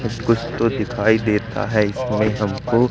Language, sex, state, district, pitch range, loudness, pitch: Hindi, male, Madhya Pradesh, Katni, 105-115 Hz, -20 LUFS, 110 Hz